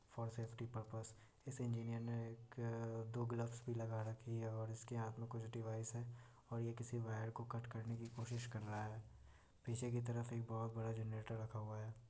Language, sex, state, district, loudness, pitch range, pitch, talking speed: Hindi, male, Bihar, Muzaffarpur, -48 LUFS, 110-120 Hz, 115 Hz, 205 wpm